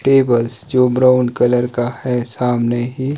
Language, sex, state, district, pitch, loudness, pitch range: Hindi, male, Himachal Pradesh, Shimla, 125 Hz, -16 LUFS, 120-130 Hz